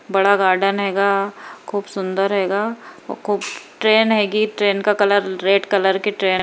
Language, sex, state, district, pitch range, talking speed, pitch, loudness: Hindi, female, Bihar, Kishanganj, 195-210 Hz, 170 wpm, 200 Hz, -18 LUFS